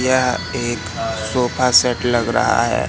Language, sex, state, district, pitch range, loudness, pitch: Hindi, male, Madhya Pradesh, Katni, 115-125 Hz, -17 LUFS, 120 Hz